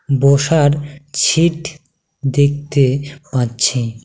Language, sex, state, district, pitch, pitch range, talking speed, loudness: Bengali, male, West Bengal, Cooch Behar, 145 Hz, 135-150 Hz, 60 wpm, -16 LUFS